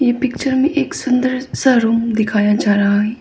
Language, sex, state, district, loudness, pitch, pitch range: Hindi, female, Arunachal Pradesh, Papum Pare, -16 LUFS, 245 Hz, 215-260 Hz